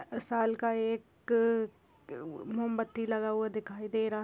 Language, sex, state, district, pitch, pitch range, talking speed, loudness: Hindi, female, Bihar, Bhagalpur, 225 Hz, 220-230 Hz, 125 wpm, -33 LUFS